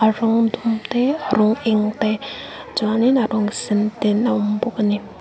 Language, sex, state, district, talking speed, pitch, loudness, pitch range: Mizo, female, Mizoram, Aizawl, 185 wpm, 220 Hz, -19 LUFS, 215-240 Hz